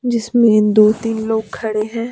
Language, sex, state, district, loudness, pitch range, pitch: Hindi, male, Himachal Pradesh, Shimla, -15 LUFS, 215-230 Hz, 225 Hz